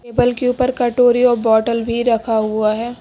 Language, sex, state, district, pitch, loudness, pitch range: Hindi, female, Haryana, Jhajjar, 235 Hz, -16 LUFS, 225-245 Hz